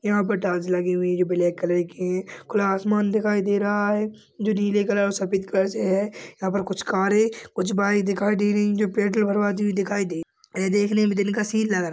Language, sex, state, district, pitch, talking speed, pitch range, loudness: Hindi, male, Uttar Pradesh, Budaun, 205 Hz, 245 wpm, 190-210 Hz, -23 LUFS